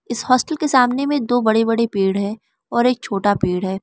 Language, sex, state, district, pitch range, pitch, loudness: Hindi, female, Arunachal Pradesh, Lower Dibang Valley, 200-255 Hz, 230 Hz, -18 LUFS